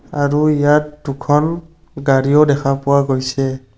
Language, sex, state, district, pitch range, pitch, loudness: Assamese, male, Assam, Kamrup Metropolitan, 135-150 Hz, 145 Hz, -15 LUFS